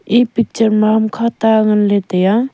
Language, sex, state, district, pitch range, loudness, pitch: Wancho, female, Arunachal Pradesh, Longding, 210-230 Hz, -14 LUFS, 220 Hz